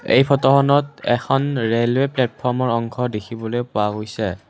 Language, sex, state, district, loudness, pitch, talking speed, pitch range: Assamese, male, Assam, Kamrup Metropolitan, -19 LUFS, 120 Hz, 120 wpm, 115-135 Hz